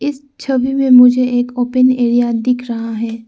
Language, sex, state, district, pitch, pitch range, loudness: Hindi, female, Arunachal Pradesh, Lower Dibang Valley, 250 Hz, 240-255 Hz, -13 LUFS